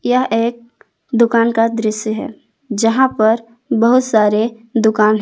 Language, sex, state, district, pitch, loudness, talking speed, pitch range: Hindi, female, Jharkhand, Palamu, 230 Hz, -15 LUFS, 140 wpm, 220-235 Hz